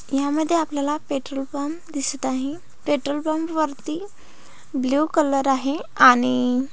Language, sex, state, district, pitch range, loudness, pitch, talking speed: Marathi, female, Maharashtra, Pune, 270-310 Hz, -22 LUFS, 285 Hz, 115 wpm